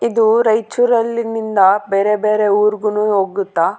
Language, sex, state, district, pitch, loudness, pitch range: Kannada, female, Karnataka, Raichur, 210 Hz, -15 LUFS, 200-225 Hz